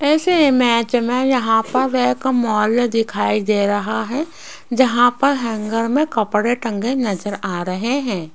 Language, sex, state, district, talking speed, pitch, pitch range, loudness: Hindi, female, Rajasthan, Jaipur, 150 wpm, 240 Hz, 215-260 Hz, -18 LUFS